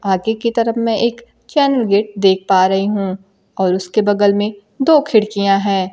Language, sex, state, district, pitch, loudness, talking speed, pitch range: Hindi, female, Bihar, Kaimur, 205 Hz, -15 LUFS, 180 wpm, 195-230 Hz